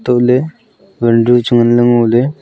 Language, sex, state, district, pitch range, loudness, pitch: Wancho, male, Arunachal Pradesh, Longding, 120-140 Hz, -11 LUFS, 120 Hz